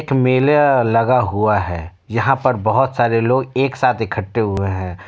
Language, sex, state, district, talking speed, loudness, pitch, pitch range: Hindi, male, Bihar, Kishanganj, 175 wpm, -17 LUFS, 120 Hz, 105-130 Hz